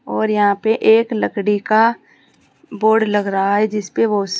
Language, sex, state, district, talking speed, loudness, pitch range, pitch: Hindi, female, Uttar Pradesh, Saharanpur, 165 wpm, -16 LUFS, 205-220 Hz, 210 Hz